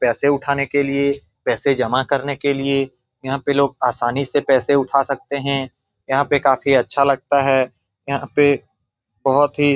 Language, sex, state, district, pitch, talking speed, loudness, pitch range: Hindi, male, Bihar, Saran, 140 Hz, 180 wpm, -18 LUFS, 130-140 Hz